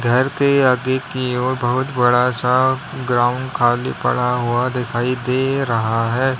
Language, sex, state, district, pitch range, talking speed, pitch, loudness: Hindi, male, Uttar Pradesh, Lalitpur, 120-130 Hz, 150 wpm, 125 Hz, -18 LUFS